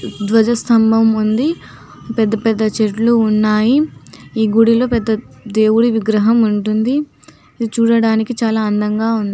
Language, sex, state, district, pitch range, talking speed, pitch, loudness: Telugu, female, Telangana, Nalgonda, 215-230 Hz, 90 wpm, 225 Hz, -15 LUFS